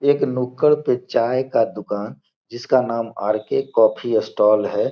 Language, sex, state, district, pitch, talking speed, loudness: Hindi, male, Bihar, Gopalganj, 135 Hz, 160 wpm, -19 LUFS